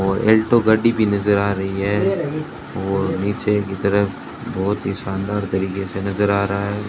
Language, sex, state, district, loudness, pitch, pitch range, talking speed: Hindi, male, Rajasthan, Bikaner, -20 LUFS, 100 Hz, 95-105 Hz, 185 wpm